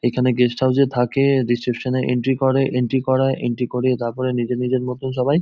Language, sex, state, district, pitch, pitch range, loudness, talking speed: Bengali, male, West Bengal, Jhargram, 125 Hz, 125-130 Hz, -20 LUFS, 200 wpm